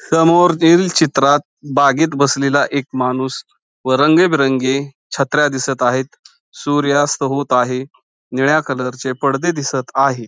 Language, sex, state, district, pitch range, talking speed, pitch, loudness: Marathi, male, Maharashtra, Pune, 130-150 Hz, 115 wpm, 140 Hz, -15 LUFS